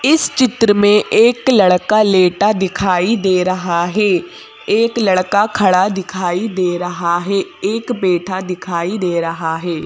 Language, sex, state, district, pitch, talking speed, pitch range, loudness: Hindi, female, Madhya Pradesh, Bhopal, 190 Hz, 140 wpm, 180-210 Hz, -15 LUFS